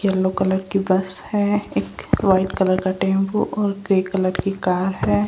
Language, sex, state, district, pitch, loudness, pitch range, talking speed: Hindi, female, Rajasthan, Jaipur, 190 Hz, -20 LUFS, 185-195 Hz, 180 wpm